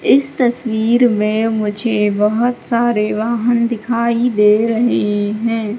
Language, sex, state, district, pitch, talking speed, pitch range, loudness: Hindi, female, Madhya Pradesh, Katni, 230 Hz, 115 wpm, 210-235 Hz, -15 LUFS